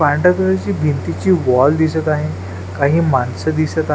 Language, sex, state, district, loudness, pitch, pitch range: Marathi, male, Maharashtra, Washim, -16 LUFS, 150 Hz, 125-160 Hz